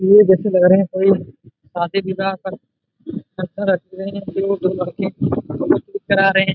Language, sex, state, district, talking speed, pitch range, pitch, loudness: Hindi, male, Jharkhand, Jamtara, 90 wpm, 185-195 Hz, 190 Hz, -18 LUFS